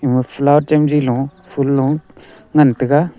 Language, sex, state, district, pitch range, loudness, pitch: Wancho, male, Arunachal Pradesh, Longding, 135-150 Hz, -15 LUFS, 145 Hz